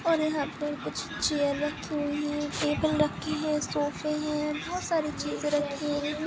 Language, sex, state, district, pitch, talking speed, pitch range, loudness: Hindi, female, Maharashtra, Pune, 300 Hz, 170 wpm, 295-305 Hz, -29 LUFS